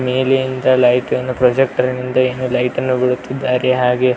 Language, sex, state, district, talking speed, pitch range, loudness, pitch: Kannada, male, Karnataka, Belgaum, 160 wpm, 125-130 Hz, -16 LUFS, 125 Hz